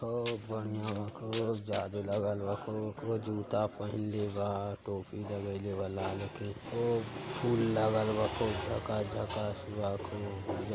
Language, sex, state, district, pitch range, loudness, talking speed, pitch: Hindi, male, Uttar Pradesh, Gorakhpur, 100-110 Hz, -35 LUFS, 150 wpm, 105 Hz